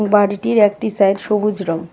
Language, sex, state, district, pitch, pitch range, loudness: Bengali, female, Tripura, West Tripura, 210 Hz, 195-210 Hz, -16 LUFS